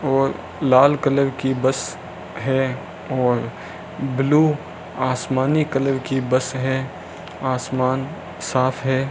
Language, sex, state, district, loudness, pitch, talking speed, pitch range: Hindi, male, Rajasthan, Bikaner, -21 LUFS, 130 Hz, 105 wpm, 115-135 Hz